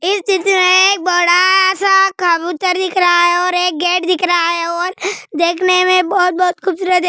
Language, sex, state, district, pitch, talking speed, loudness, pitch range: Hindi, female, Andhra Pradesh, Anantapur, 365 Hz, 185 wpm, -13 LUFS, 350-375 Hz